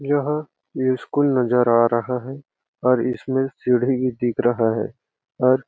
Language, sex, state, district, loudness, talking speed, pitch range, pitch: Hindi, male, Chhattisgarh, Balrampur, -21 LUFS, 145 wpm, 120-135 Hz, 125 Hz